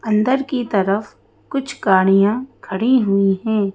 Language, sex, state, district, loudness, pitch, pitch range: Hindi, female, Madhya Pradesh, Bhopal, -18 LUFS, 215 Hz, 195-250 Hz